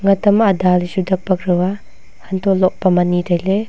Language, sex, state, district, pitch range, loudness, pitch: Wancho, female, Arunachal Pradesh, Longding, 180-195 Hz, -16 LUFS, 185 Hz